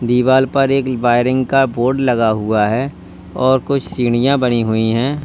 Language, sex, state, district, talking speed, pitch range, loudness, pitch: Hindi, male, Uttar Pradesh, Lalitpur, 170 wpm, 115-135 Hz, -15 LUFS, 125 Hz